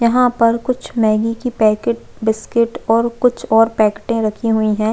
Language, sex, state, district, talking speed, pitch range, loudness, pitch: Hindi, female, Chhattisgarh, Jashpur, 170 wpm, 215-235 Hz, -16 LUFS, 225 Hz